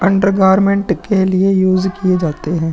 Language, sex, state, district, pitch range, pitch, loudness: Hindi, male, Bihar, Vaishali, 180-195 Hz, 190 Hz, -14 LUFS